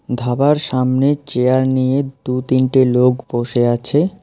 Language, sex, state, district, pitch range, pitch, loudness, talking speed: Bengali, male, West Bengal, Alipurduar, 125-140 Hz, 130 Hz, -16 LUFS, 125 wpm